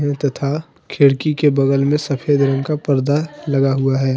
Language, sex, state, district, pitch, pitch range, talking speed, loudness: Hindi, male, Jharkhand, Deoghar, 140 Hz, 135-150 Hz, 170 wpm, -17 LUFS